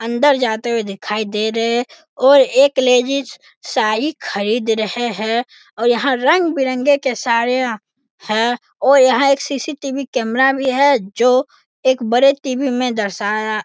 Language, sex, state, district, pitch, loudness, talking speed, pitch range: Hindi, male, Bihar, Sitamarhi, 250 Hz, -16 LUFS, 155 wpm, 225-275 Hz